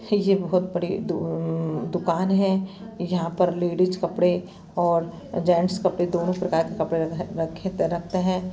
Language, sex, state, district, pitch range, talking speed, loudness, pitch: Hindi, female, Chhattisgarh, Bastar, 170-185 Hz, 150 wpm, -24 LUFS, 180 Hz